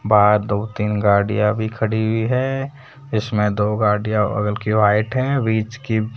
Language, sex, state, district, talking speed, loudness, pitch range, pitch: Hindi, male, Rajasthan, Jaipur, 165 wpm, -19 LUFS, 105-115 Hz, 110 Hz